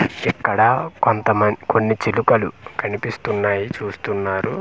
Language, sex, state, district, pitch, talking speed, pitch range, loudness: Telugu, male, Andhra Pradesh, Manyam, 105 Hz, 80 wpm, 100-110 Hz, -20 LUFS